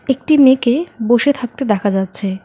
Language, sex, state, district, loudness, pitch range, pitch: Bengali, female, West Bengal, Alipurduar, -15 LUFS, 200-265 Hz, 240 Hz